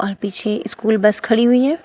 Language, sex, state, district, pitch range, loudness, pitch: Hindi, female, Uttar Pradesh, Shamli, 210-230 Hz, -16 LUFS, 220 Hz